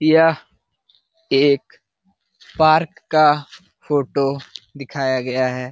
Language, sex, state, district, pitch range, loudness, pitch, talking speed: Hindi, male, Bihar, Jahanabad, 135-155 Hz, -18 LUFS, 145 Hz, 85 wpm